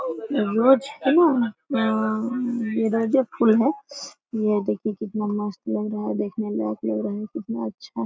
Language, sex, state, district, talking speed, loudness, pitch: Hindi, female, Jharkhand, Sahebganj, 140 wpm, -23 LUFS, 220 Hz